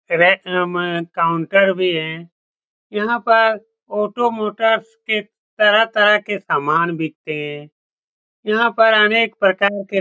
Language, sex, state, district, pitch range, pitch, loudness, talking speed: Hindi, male, Bihar, Saran, 175-220 Hz, 205 Hz, -17 LUFS, 115 wpm